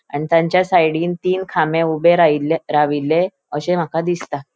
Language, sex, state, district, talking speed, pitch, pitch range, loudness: Konkani, female, Goa, North and South Goa, 145 wpm, 165 Hz, 150-175 Hz, -17 LUFS